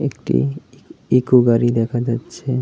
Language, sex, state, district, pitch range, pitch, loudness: Bengali, male, Tripura, West Tripura, 115-125 Hz, 120 Hz, -18 LUFS